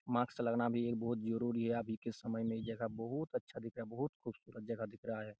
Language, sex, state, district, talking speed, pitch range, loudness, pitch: Hindi, male, Chhattisgarh, Raigarh, 265 wpm, 115-120 Hz, -40 LUFS, 115 Hz